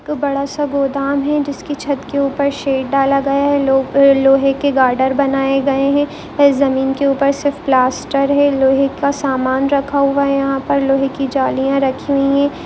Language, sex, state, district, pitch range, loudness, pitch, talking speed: Hindi, female, Chhattisgarh, Bilaspur, 270-280 Hz, -15 LUFS, 275 Hz, 190 wpm